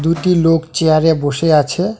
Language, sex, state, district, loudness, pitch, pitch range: Bengali, male, West Bengal, Alipurduar, -14 LUFS, 165 Hz, 155-170 Hz